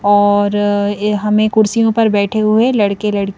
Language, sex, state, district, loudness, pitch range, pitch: Hindi, female, Madhya Pradesh, Bhopal, -13 LUFS, 205-215 Hz, 205 Hz